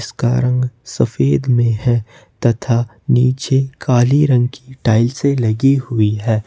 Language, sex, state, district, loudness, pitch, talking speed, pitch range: Hindi, male, Jharkhand, Ranchi, -16 LUFS, 120 Hz, 130 wpm, 115-130 Hz